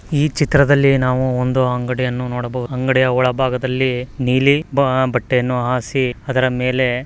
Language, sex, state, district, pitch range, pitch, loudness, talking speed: Kannada, male, Karnataka, Mysore, 125-130 Hz, 130 Hz, -17 LUFS, 145 wpm